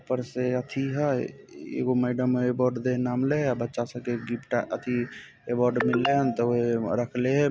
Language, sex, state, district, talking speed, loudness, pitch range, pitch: Maithili, male, Bihar, Samastipur, 160 wpm, -27 LUFS, 120-130 Hz, 125 Hz